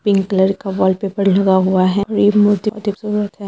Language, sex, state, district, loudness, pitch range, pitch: Hindi, female, Bihar, Purnia, -15 LUFS, 190-205 Hz, 200 Hz